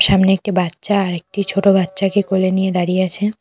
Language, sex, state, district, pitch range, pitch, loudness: Bengali, female, West Bengal, Cooch Behar, 185-200 Hz, 190 Hz, -17 LUFS